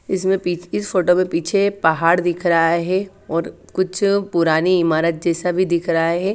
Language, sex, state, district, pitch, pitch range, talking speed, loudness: Hindi, female, Haryana, Charkhi Dadri, 175 Hz, 165-185 Hz, 170 wpm, -18 LUFS